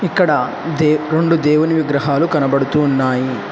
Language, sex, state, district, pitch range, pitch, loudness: Telugu, male, Telangana, Hyderabad, 140-155 Hz, 150 Hz, -15 LUFS